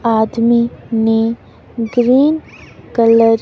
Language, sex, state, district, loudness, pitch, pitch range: Hindi, female, Himachal Pradesh, Shimla, -14 LUFS, 230 Hz, 225-240 Hz